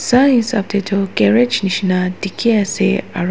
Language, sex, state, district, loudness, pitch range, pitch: Nagamese, female, Nagaland, Dimapur, -15 LUFS, 190-235 Hz, 200 Hz